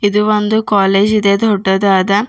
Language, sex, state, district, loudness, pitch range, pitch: Kannada, female, Karnataka, Bidar, -12 LUFS, 195-215 Hz, 205 Hz